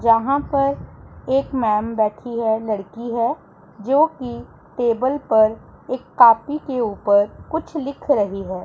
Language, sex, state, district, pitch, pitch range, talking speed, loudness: Hindi, female, Punjab, Pathankot, 235 Hz, 215-275 Hz, 140 wpm, -20 LUFS